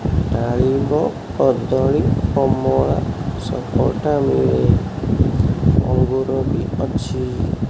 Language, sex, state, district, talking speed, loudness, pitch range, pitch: Odia, male, Odisha, Khordha, 60 wpm, -18 LUFS, 80-130 Hz, 115 Hz